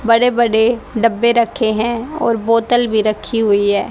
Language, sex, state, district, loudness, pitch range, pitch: Hindi, female, Haryana, Charkhi Dadri, -15 LUFS, 220-235 Hz, 230 Hz